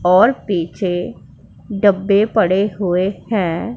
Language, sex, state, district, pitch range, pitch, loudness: Hindi, female, Punjab, Pathankot, 175-205 Hz, 190 Hz, -17 LUFS